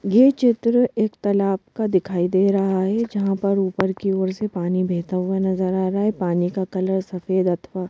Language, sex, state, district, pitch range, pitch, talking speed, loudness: Hindi, female, Madhya Pradesh, Bhopal, 185-205 Hz, 190 Hz, 210 wpm, -21 LUFS